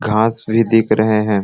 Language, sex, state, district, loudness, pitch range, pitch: Sadri, male, Chhattisgarh, Jashpur, -15 LUFS, 105-115 Hz, 110 Hz